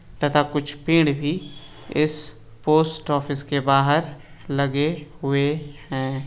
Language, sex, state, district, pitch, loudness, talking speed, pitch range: Hindi, male, Bihar, Lakhisarai, 145 Hz, -22 LUFS, 115 wpm, 140-150 Hz